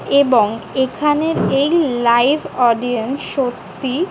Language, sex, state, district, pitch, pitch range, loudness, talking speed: Bengali, female, West Bengal, Kolkata, 260 Hz, 240-295 Hz, -16 LUFS, 85 wpm